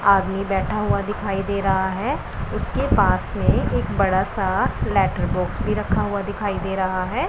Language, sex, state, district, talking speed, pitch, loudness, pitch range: Hindi, male, Punjab, Pathankot, 180 wpm, 200 Hz, -22 LUFS, 190-205 Hz